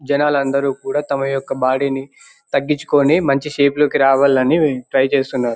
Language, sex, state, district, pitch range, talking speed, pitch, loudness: Telugu, male, Telangana, Karimnagar, 135-145 Hz, 140 wpm, 140 Hz, -16 LUFS